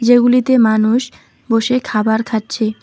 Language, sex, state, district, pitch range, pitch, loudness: Bengali, female, West Bengal, Alipurduar, 220-250 Hz, 230 Hz, -14 LUFS